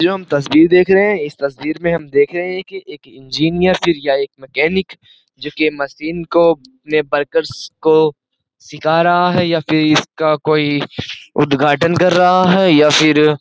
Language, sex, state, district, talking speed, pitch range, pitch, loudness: Hindi, male, Uttar Pradesh, Jyotiba Phule Nagar, 180 wpm, 145-175 Hz, 155 Hz, -14 LUFS